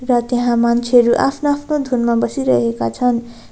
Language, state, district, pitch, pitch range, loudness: Nepali, West Bengal, Darjeeling, 240 Hz, 235-250 Hz, -16 LUFS